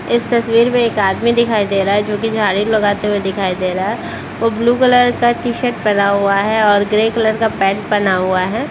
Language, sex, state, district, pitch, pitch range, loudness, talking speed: Hindi, female, Bihar, Saharsa, 210 Hz, 200-230 Hz, -15 LUFS, 235 wpm